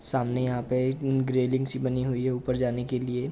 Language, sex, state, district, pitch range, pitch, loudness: Hindi, male, Uttar Pradesh, Jalaun, 125-130 Hz, 125 Hz, -27 LUFS